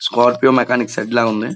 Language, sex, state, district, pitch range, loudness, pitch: Telugu, male, Andhra Pradesh, Srikakulam, 115-125 Hz, -15 LUFS, 120 Hz